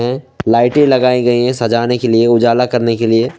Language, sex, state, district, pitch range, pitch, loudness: Hindi, male, Assam, Sonitpur, 115-125 Hz, 120 Hz, -12 LUFS